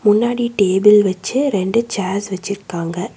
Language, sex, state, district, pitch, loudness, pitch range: Tamil, female, Tamil Nadu, Nilgiris, 200 Hz, -17 LUFS, 190-230 Hz